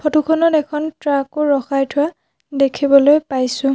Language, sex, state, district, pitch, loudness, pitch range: Assamese, female, Assam, Sonitpur, 290 Hz, -16 LUFS, 275-305 Hz